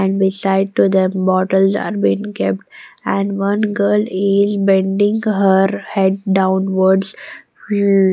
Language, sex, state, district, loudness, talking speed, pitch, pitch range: English, female, Punjab, Pathankot, -16 LUFS, 125 wpm, 195 Hz, 190-200 Hz